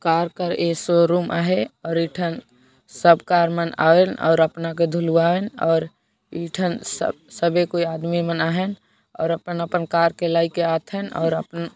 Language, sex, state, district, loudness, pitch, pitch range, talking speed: Sadri, female, Chhattisgarh, Jashpur, -21 LUFS, 170 Hz, 165-175 Hz, 180 wpm